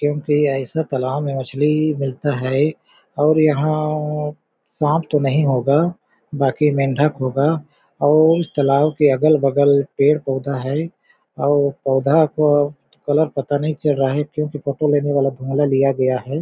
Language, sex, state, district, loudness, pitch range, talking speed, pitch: Hindi, male, Chhattisgarh, Balrampur, -18 LUFS, 140-150 Hz, 150 wpm, 145 Hz